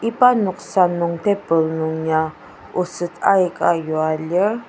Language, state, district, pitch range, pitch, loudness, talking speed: Ao, Nagaland, Dimapur, 160-200 Hz, 175 Hz, -19 LUFS, 130 wpm